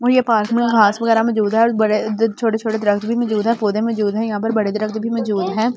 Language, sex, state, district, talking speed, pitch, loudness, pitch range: Hindi, female, Delhi, New Delhi, 260 wpm, 220 Hz, -17 LUFS, 215-230 Hz